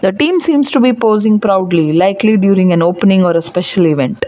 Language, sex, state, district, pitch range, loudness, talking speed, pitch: English, female, Gujarat, Valsad, 175-220 Hz, -11 LUFS, 210 wpm, 190 Hz